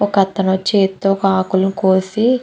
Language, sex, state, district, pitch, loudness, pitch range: Telugu, female, Andhra Pradesh, Chittoor, 195 Hz, -16 LUFS, 190-200 Hz